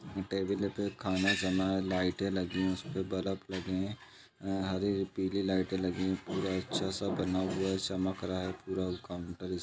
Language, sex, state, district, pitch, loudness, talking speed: Hindi, male, Uttar Pradesh, Jalaun, 95 Hz, -34 LUFS, 185 wpm